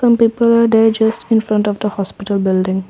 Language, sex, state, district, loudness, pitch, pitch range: English, female, Assam, Kamrup Metropolitan, -14 LUFS, 220 Hz, 200-230 Hz